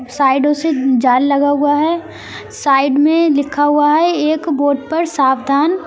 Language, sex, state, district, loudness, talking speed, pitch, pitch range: Hindi, female, Bihar, Kaimur, -14 LUFS, 155 wpm, 290 Hz, 275-315 Hz